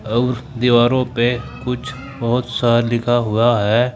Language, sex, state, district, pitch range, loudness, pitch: Hindi, male, Uttar Pradesh, Saharanpur, 120-125 Hz, -17 LUFS, 120 Hz